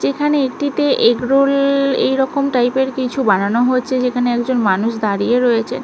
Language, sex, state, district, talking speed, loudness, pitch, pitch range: Bengali, female, West Bengal, Malda, 155 wpm, -16 LUFS, 255 Hz, 240-275 Hz